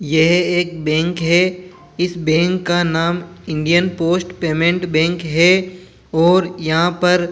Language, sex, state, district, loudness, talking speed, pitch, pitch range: Hindi, male, Rajasthan, Jaipur, -16 LUFS, 140 wpm, 175 Hz, 165-180 Hz